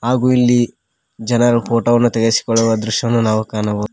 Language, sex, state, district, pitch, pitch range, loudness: Kannada, male, Karnataka, Koppal, 115 Hz, 110-120 Hz, -15 LUFS